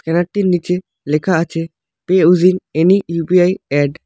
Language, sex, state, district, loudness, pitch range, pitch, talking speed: Bengali, male, West Bengal, Alipurduar, -15 LUFS, 165-185 Hz, 175 Hz, 150 wpm